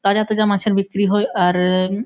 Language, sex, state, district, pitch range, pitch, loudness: Bengali, male, West Bengal, Malda, 185-210 Hz, 200 Hz, -17 LUFS